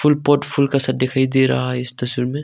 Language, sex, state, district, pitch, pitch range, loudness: Hindi, male, Arunachal Pradesh, Longding, 130 Hz, 125-140 Hz, -17 LUFS